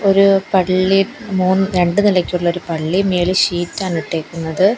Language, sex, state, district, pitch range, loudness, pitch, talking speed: Malayalam, female, Kerala, Kollam, 175-195 Hz, -16 LUFS, 185 Hz, 125 wpm